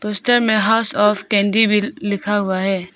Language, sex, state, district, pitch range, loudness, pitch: Hindi, female, Arunachal Pradesh, Papum Pare, 200-220 Hz, -16 LUFS, 210 Hz